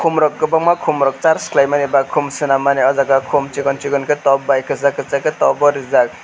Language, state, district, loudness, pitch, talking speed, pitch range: Kokborok, Tripura, West Tripura, -15 LUFS, 140 Hz, 230 wpm, 140-150 Hz